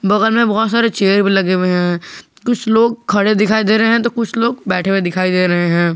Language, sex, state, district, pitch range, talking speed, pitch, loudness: Hindi, male, Jharkhand, Garhwa, 185-230 Hz, 250 wpm, 210 Hz, -14 LUFS